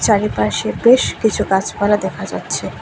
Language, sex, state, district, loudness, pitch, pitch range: Bengali, female, Tripura, West Tripura, -17 LUFS, 200 Hz, 180-220 Hz